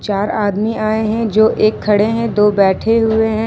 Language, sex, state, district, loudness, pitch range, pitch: Hindi, female, Jharkhand, Ranchi, -14 LUFS, 210-220 Hz, 220 Hz